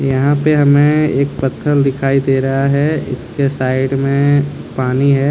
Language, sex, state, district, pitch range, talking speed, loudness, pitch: Hindi, male, Jharkhand, Deoghar, 135-145 Hz, 160 wpm, -14 LUFS, 140 Hz